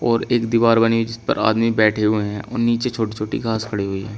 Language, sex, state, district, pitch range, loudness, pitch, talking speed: Hindi, male, Uttar Pradesh, Shamli, 105-115 Hz, -19 LUFS, 115 Hz, 260 wpm